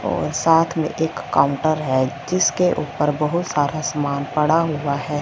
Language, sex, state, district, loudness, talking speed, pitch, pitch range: Hindi, female, Punjab, Fazilka, -20 LUFS, 160 wpm, 150 Hz, 140-160 Hz